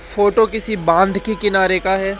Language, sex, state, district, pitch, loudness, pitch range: Hindi, male, Rajasthan, Jaipur, 200 Hz, -16 LUFS, 190-215 Hz